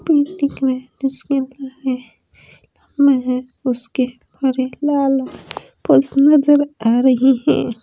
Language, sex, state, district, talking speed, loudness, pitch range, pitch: Hindi, female, Rajasthan, Nagaur, 100 wpm, -17 LUFS, 255-280 Hz, 265 Hz